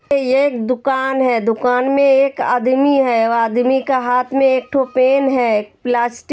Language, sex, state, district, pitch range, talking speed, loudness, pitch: Hindi, female, Uttar Pradesh, Hamirpur, 245-270 Hz, 180 wpm, -15 LUFS, 255 Hz